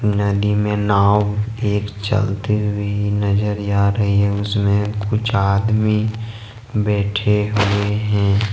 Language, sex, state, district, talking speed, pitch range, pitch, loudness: Hindi, male, Jharkhand, Ranchi, 110 wpm, 100-105 Hz, 105 Hz, -18 LUFS